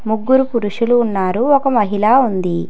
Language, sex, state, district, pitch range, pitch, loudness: Telugu, female, Telangana, Hyderabad, 200-260 Hz, 230 Hz, -15 LUFS